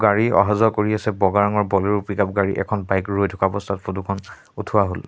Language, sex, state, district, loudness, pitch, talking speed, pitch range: Assamese, male, Assam, Sonitpur, -20 LUFS, 100 Hz, 225 wpm, 100-105 Hz